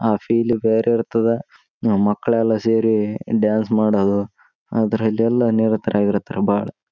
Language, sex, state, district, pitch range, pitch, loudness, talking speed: Kannada, male, Karnataka, Raichur, 105-115 Hz, 110 Hz, -19 LUFS, 80 wpm